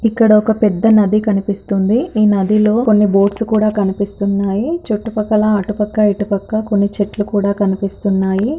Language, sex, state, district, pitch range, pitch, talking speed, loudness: Telugu, female, Andhra Pradesh, Anantapur, 200-215 Hz, 210 Hz, 135 wpm, -15 LUFS